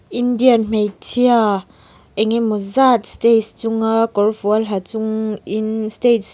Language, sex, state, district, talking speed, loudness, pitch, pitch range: Mizo, female, Mizoram, Aizawl, 115 wpm, -17 LUFS, 220 Hz, 210-230 Hz